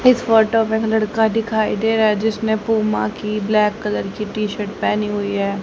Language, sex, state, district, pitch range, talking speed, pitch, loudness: Hindi, female, Haryana, Rohtak, 210-220 Hz, 200 wpm, 215 Hz, -18 LUFS